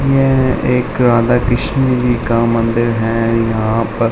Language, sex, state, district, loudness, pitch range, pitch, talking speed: Hindi, male, Uttar Pradesh, Hamirpur, -14 LUFS, 115-125 Hz, 120 Hz, 130 wpm